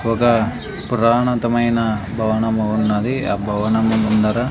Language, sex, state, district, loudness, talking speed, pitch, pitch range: Telugu, male, Andhra Pradesh, Sri Satya Sai, -18 LUFS, 95 wpm, 110 Hz, 110-120 Hz